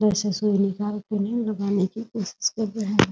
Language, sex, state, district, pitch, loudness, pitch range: Hindi, female, Bihar, Muzaffarpur, 210 Hz, -25 LUFS, 200-215 Hz